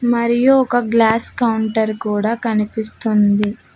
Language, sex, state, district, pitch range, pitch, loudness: Telugu, female, Telangana, Mahabubabad, 215-235 Hz, 225 Hz, -17 LUFS